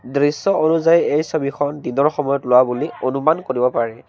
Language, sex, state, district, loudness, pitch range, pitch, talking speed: Assamese, male, Assam, Kamrup Metropolitan, -18 LUFS, 125-155 Hz, 140 Hz, 160 wpm